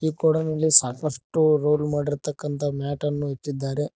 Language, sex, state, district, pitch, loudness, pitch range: Kannada, male, Karnataka, Koppal, 145 Hz, -23 LUFS, 145-155 Hz